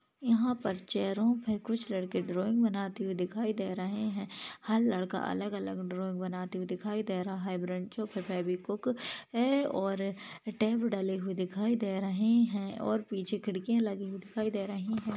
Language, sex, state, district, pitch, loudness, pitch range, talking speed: Hindi, female, Maharashtra, Chandrapur, 200 Hz, -33 LUFS, 190-220 Hz, 175 wpm